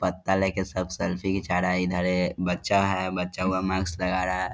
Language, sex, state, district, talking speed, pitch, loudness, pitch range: Hindi, male, Bihar, Vaishali, 210 wpm, 90 Hz, -26 LUFS, 90-95 Hz